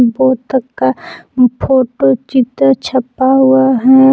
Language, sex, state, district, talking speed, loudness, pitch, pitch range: Hindi, female, Jharkhand, Palamu, 100 wpm, -12 LUFS, 260 Hz, 240-265 Hz